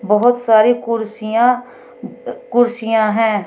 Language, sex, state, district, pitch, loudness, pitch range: Hindi, female, Uttar Pradesh, Shamli, 230 Hz, -15 LUFS, 220-245 Hz